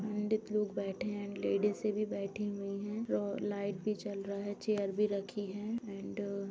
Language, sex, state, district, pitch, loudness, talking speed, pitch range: Hindi, female, Uttar Pradesh, Jalaun, 205 Hz, -37 LUFS, 195 wpm, 200-210 Hz